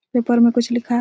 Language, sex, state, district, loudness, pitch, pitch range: Hindi, female, Chhattisgarh, Raigarh, -17 LUFS, 240 Hz, 235-240 Hz